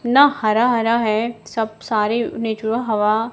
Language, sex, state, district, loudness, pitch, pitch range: Hindi, female, Bihar, Kaimur, -19 LUFS, 225 Hz, 220-235 Hz